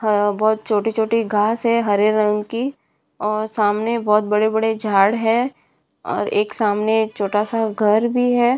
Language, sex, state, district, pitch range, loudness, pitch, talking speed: Hindi, female, Bihar, Madhepura, 210-225 Hz, -19 LUFS, 215 Hz, 160 wpm